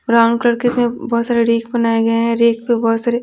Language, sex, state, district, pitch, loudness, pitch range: Hindi, female, Bihar, Patna, 235 Hz, -15 LUFS, 230-240 Hz